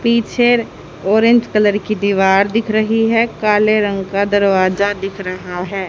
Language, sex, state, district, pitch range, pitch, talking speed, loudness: Hindi, female, Haryana, Charkhi Dadri, 195-225 Hz, 205 Hz, 155 wpm, -15 LUFS